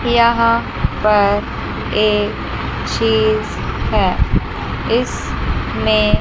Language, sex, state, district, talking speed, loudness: Hindi, female, Chandigarh, Chandigarh, 60 wpm, -17 LUFS